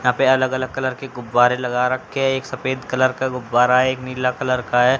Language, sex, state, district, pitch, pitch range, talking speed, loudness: Hindi, female, Haryana, Jhajjar, 130 Hz, 125-130 Hz, 250 wpm, -19 LUFS